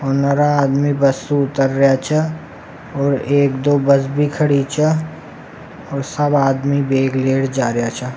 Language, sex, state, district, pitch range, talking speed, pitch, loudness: Rajasthani, male, Rajasthan, Nagaur, 135-145 Hz, 170 wpm, 140 Hz, -16 LUFS